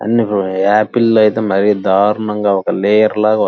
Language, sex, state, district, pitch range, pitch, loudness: Telugu, male, Andhra Pradesh, Krishna, 100-110 Hz, 105 Hz, -13 LUFS